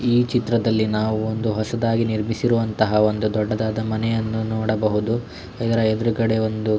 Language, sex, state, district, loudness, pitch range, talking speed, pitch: Kannada, male, Karnataka, Shimoga, -21 LUFS, 110-115 Hz, 115 wpm, 110 Hz